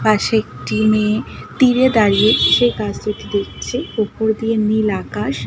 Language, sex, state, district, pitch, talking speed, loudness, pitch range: Bengali, female, West Bengal, Malda, 215 Hz, 145 wpm, -16 LUFS, 210-225 Hz